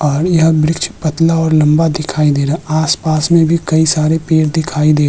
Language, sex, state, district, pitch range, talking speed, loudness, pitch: Hindi, male, Uttar Pradesh, Hamirpur, 155-165 Hz, 235 wpm, -13 LUFS, 160 Hz